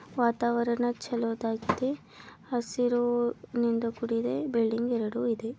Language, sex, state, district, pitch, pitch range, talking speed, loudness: Kannada, female, Karnataka, Belgaum, 235 Hz, 230-240 Hz, 75 wpm, -29 LUFS